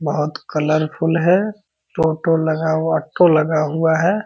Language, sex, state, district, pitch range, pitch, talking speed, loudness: Hindi, male, Bihar, Purnia, 155-170 Hz, 160 Hz, 125 wpm, -18 LUFS